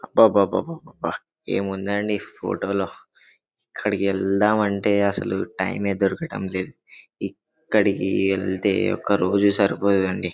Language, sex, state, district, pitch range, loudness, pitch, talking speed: Telugu, male, Telangana, Karimnagar, 95-100 Hz, -22 LUFS, 100 Hz, 100 wpm